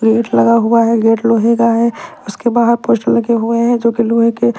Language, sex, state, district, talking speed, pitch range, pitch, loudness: Hindi, female, Punjab, Kapurthala, 220 wpm, 225-235 Hz, 230 Hz, -13 LUFS